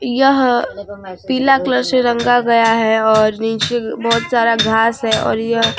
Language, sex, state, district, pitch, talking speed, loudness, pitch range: Hindi, female, Bihar, Vaishali, 230 Hz, 165 wpm, -14 LUFS, 220-245 Hz